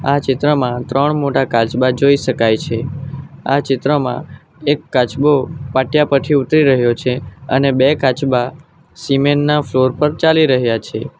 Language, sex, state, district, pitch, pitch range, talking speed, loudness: Gujarati, male, Gujarat, Valsad, 135 Hz, 130-145 Hz, 140 wpm, -15 LUFS